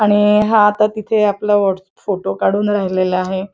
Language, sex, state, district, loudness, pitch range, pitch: Marathi, female, Maharashtra, Chandrapur, -15 LUFS, 190-210 Hz, 205 Hz